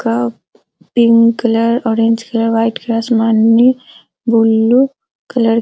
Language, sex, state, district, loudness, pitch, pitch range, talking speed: Hindi, female, Bihar, Araria, -13 LUFS, 230 Hz, 225-235 Hz, 120 wpm